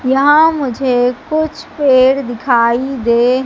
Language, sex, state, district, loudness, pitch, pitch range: Hindi, female, Madhya Pradesh, Katni, -13 LUFS, 260 Hz, 245-285 Hz